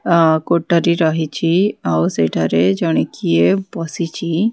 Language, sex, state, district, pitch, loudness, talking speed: Odia, female, Odisha, Khordha, 165 Hz, -16 LUFS, 105 wpm